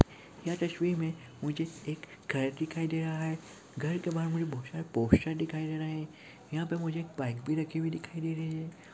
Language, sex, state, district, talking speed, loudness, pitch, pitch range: Hindi, male, Chhattisgarh, Kabirdham, 220 wpm, -34 LUFS, 160 Hz, 155-165 Hz